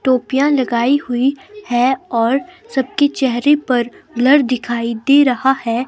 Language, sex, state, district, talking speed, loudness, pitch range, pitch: Hindi, female, Himachal Pradesh, Shimla, 130 wpm, -16 LUFS, 245-285 Hz, 260 Hz